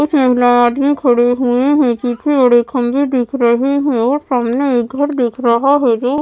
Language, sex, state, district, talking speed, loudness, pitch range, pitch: Hindi, female, Maharashtra, Mumbai Suburban, 185 wpm, -13 LUFS, 240-280 Hz, 250 Hz